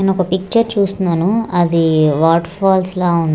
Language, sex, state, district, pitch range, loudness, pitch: Telugu, female, Andhra Pradesh, Manyam, 170-195 Hz, -15 LUFS, 185 Hz